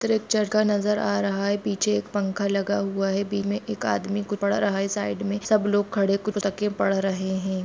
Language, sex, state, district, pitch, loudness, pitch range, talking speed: Hindi, female, Jharkhand, Jamtara, 200 Hz, -25 LUFS, 195-205 Hz, 250 wpm